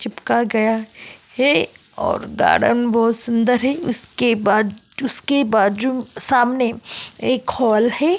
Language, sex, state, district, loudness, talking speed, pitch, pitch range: Hindi, female, Goa, North and South Goa, -18 LUFS, 115 wpm, 240 Hz, 225-255 Hz